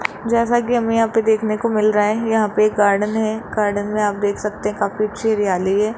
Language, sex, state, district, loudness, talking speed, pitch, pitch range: Hindi, male, Rajasthan, Jaipur, -18 LUFS, 240 wpm, 215 Hz, 210-225 Hz